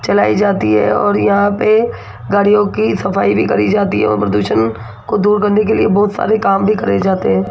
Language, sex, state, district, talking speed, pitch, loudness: Hindi, female, Rajasthan, Jaipur, 215 wpm, 200 Hz, -13 LUFS